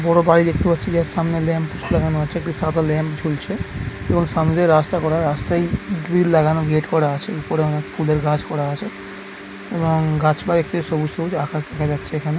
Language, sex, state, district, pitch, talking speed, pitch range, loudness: Bengali, male, West Bengal, Dakshin Dinajpur, 160 Hz, 195 wpm, 150-170 Hz, -19 LUFS